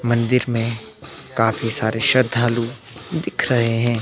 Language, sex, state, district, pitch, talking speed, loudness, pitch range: Hindi, male, Himachal Pradesh, Shimla, 115 Hz, 120 wpm, -20 LUFS, 115-120 Hz